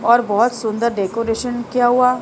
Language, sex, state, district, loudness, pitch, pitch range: Hindi, female, Maharashtra, Mumbai Suburban, -18 LUFS, 235 Hz, 225-245 Hz